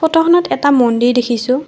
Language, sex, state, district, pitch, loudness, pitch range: Assamese, female, Assam, Kamrup Metropolitan, 255 Hz, -13 LUFS, 245-320 Hz